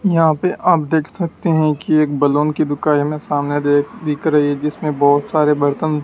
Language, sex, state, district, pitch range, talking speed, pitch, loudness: Hindi, male, Madhya Pradesh, Dhar, 145-155 Hz, 230 wpm, 150 Hz, -16 LUFS